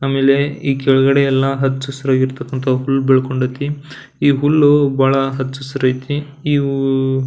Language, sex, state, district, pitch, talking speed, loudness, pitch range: Kannada, male, Karnataka, Belgaum, 135 Hz, 140 wpm, -16 LUFS, 130-140 Hz